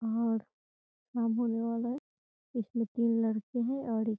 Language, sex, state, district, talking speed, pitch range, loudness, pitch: Hindi, female, Bihar, Gopalganj, 115 wpm, 225-240 Hz, -33 LUFS, 230 Hz